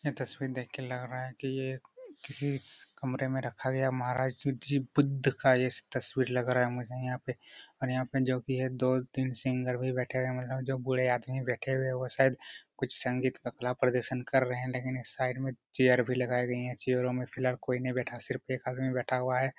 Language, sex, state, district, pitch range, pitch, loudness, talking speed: Hindi, male, Bihar, Araria, 125-130 Hz, 130 Hz, -32 LUFS, 235 wpm